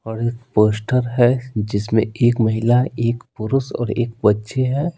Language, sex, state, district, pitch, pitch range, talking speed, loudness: Hindi, male, Bihar, Patna, 120 Hz, 110-125 Hz, 155 wpm, -19 LUFS